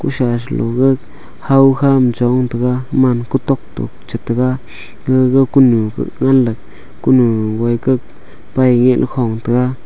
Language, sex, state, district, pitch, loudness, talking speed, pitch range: Wancho, male, Arunachal Pradesh, Longding, 125 Hz, -14 LUFS, 110 wpm, 120-130 Hz